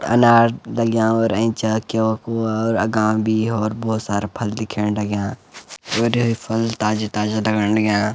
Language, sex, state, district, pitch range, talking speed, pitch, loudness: Garhwali, male, Uttarakhand, Uttarkashi, 110-115 Hz, 140 wpm, 110 Hz, -19 LUFS